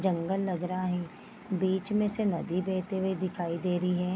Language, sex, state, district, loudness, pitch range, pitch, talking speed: Hindi, female, Bihar, Vaishali, -31 LUFS, 180-190 Hz, 185 Hz, 200 wpm